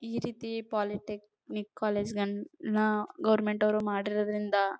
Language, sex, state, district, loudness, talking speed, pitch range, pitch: Kannada, female, Karnataka, Chamarajanagar, -31 LUFS, 100 wpm, 205-215 Hz, 210 Hz